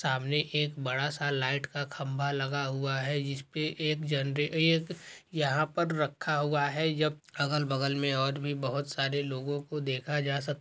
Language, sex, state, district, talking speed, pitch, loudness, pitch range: Hindi, male, Chhattisgarh, Balrampur, 175 wpm, 145 Hz, -31 LUFS, 140-150 Hz